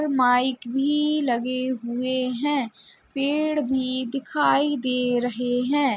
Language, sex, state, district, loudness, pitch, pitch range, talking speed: Hindi, female, Uttar Pradesh, Jalaun, -23 LUFS, 260 Hz, 245-285 Hz, 120 wpm